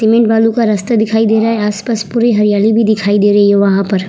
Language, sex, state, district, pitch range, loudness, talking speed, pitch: Hindi, female, Uttar Pradesh, Hamirpur, 205-225 Hz, -11 LUFS, 265 wpm, 220 Hz